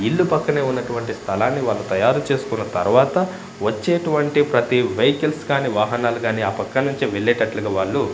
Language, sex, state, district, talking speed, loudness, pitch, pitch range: Telugu, male, Andhra Pradesh, Manyam, 135 wpm, -20 LUFS, 140 Hz, 120-155 Hz